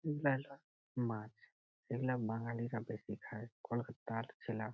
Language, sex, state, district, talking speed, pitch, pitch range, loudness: Bengali, male, West Bengal, Malda, 100 wpm, 120 Hz, 115-130 Hz, -42 LUFS